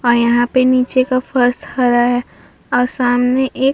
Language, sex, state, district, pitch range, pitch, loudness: Hindi, female, Bihar, Vaishali, 245-255 Hz, 250 Hz, -15 LUFS